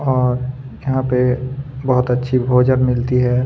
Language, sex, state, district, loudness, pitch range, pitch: Hindi, male, Chhattisgarh, Kabirdham, -17 LUFS, 125-130 Hz, 125 Hz